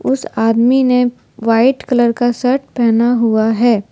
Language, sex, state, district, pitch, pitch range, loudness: Hindi, female, Jharkhand, Deoghar, 240 Hz, 230-250 Hz, -14 LUFS